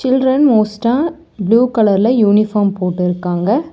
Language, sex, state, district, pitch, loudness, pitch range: Tamil, male, Tamil Nadu, Chennai, 220 Hz, -14 LUFS, 200-260 Hz